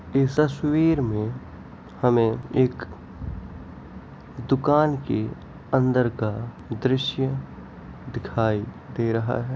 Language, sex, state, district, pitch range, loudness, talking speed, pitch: Hindi, male, Uttar Pradesh, Jyotiba Phule Nagar, 105-135 Hz, -24 LUFS, 95 wpm, 120 Hz